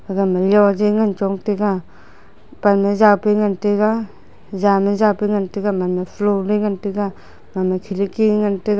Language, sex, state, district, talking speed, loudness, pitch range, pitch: Wancho, female, Arunachal Pradesh, Longding, 115 wpm, -18 LUFS, 195-210 Hz, 205 Hz